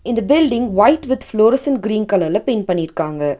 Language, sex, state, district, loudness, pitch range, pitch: Tamil, female, Tamil Nadu, Nilgiris, -16 LUFS, 185-260 Hz, 220 Hz